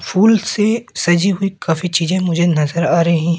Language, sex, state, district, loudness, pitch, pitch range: Hindi, male, Madhya Pradesh, Katni, -15 LUFS, 175 Hz, 170-195 Hz